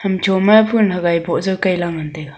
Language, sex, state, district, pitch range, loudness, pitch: Wancho, female, Arunachal Pradesh, Longding, 170-195 Hz, -16 LUFS, 185 Hz